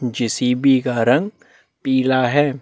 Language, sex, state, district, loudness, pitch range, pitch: Hindi, male, Chhattisgarh, Bastar, -17 LUFS, 125-135 Hz, 130 Hz